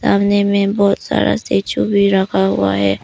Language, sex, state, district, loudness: Hindi, female, Arunachal Pradesh, Papum Pare, -15 LUFS